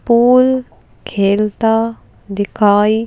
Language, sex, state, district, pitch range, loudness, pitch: Hindi, female, Madhya Pradesh, Bhopal, 205-235 Hz, -14 LUFS, 225 Hz